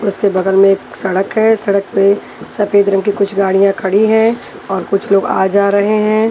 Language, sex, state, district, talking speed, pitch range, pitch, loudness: Hindi, female, Haryana, Charkhi Dadri, 210 wpm, 195-210 Hz, 200 Hz, -13 LUFS